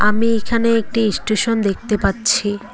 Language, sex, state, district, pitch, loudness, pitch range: Bengali, female, West Bengal, Cooch Behar, 215 Hz, -17 LUFS, 205-230 Hz